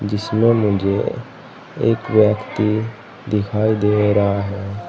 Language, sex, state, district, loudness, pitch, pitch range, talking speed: Hindi, male, Uttar Pradesh, Saharanpur, -18 LUFS, 105 Hz, 100-110 Hz, 100 wpm